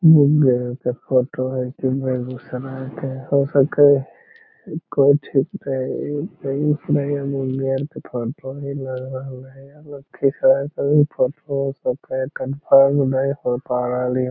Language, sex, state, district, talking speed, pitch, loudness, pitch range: Magahi, male, Bihar, Lakhisarai, 75 wpm, 135 Hz, -20 LUFS, 130-145 Hz